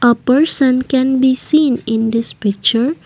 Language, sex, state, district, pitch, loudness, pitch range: English, female, Assam, Kamrup Metropolitan, 255 Hz, -14 LUFS, 230-265 Hz